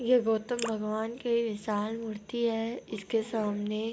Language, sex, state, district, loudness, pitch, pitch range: Hindi, female, Andhra Pradesh, Anantapur, -31 LUFS, 225 Hz, 215-235 Hz